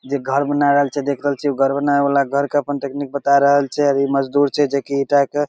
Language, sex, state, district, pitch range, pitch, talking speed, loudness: Maithili, male, Bihar, Begusarai, 140-145 Hz, 140 Hz, 295 wpm, -18 LUFS